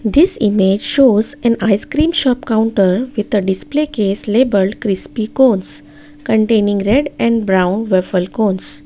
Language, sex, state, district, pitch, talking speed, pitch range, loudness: English, female, Gujarat, Valsad, 215 Hz, 135 wpm, 195-240 Hz, -15 LUFS